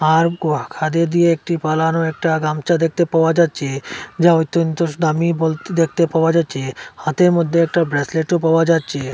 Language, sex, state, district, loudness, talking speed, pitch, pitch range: Bengali, male, Assam, Hailakandi, -17 LUFS, 155 wpm, 165 Hz, 155-170 Hz